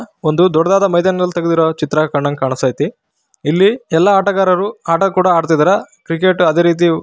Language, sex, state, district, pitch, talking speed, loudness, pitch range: Kannada, male, Karnataka, Raichur, 170 Hz, 145 wpm, -14 LUFS, 160-185 Hz